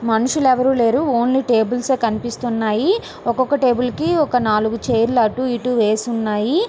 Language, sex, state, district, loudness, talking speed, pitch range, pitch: Telugu, female, Andhra Pradesh, Srikakulam, -18 LUFS, 145 wpm, 230-260 Hz, 240 Hz